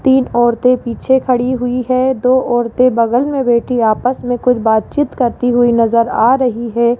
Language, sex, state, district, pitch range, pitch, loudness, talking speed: Hindi, female, Rajasthan, Jaipur, 235-255 Hz, 245 Hz, -13 LUFS, 180 wpm